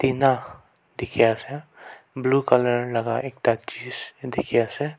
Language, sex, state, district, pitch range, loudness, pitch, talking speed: Nagamese, male, Nagaland, Kohima, 115-135 Hz, -23 LUFS, 125 Hz, 110 wpm